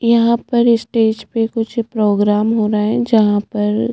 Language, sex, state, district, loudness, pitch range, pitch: Hindi, female, Chhattisgarh, Jashpur, -15 LUFS, 210-230 Hz, 225 Hz